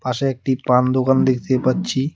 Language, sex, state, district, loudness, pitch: Bengali, male, West Bengal, Alipurduar, -18 LUFS, 130 Hz